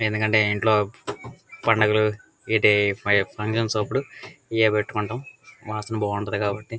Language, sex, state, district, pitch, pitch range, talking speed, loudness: Telugu, male, Andhra Pradesh, Guntur, 110 Hz, 105-115 Hz, 95 wpm, -23 LUFS